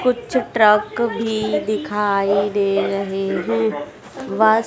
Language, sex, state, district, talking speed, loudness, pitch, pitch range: Hindi, female, Madhya Pradesh, Dhar, 105 wpm, -19 LUFS, 210 Hz, 200-225 Hz